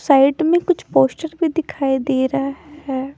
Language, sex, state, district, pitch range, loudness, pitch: Hindi, female, Punjab, Pathankot, 265-325 Hz, -18 LUFS, 275 Hz